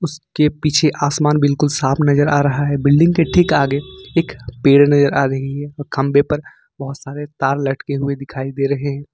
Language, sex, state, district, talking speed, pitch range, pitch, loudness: Hindi, male, Jharkhand, Ranchi, 195 wpm, 140-150 Hz, 145 Hz, -16 LUFS